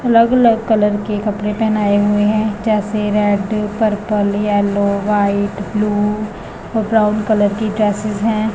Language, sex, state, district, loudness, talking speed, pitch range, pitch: Hindi, male, Punjab, Pathankot, -16 LUFS, 140 wpm, 205-215 Hz, 210 Hz